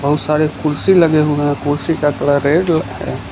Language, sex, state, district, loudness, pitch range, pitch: Hindi, male, Gujarat, Valsad, -15 LUFS, 145-155 Hz, 150 Hz